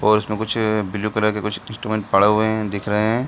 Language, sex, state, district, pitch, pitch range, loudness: Hindi, male, Bihar, Gaya, 105 Hz, 105-110 Hz, -20 LUFS